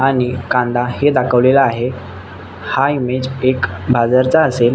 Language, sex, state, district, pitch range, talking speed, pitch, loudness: Marathi, male, Maharashtra, Nagpur, 120-130 Hz, 140 wpm, 125 Hz, -15 LUFS